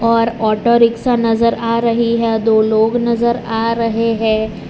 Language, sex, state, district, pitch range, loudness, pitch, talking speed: Hindi, male, Gujarat, Valsad, 225-235 Hz, -15 LUFS, 230 Hz, 165 wpm